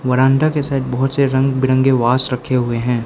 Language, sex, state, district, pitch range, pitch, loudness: Hindi, male, Arunachal Pradesh, Lower Dibang Valley, 125-135 Hz, 130 Hz, -16 LUFS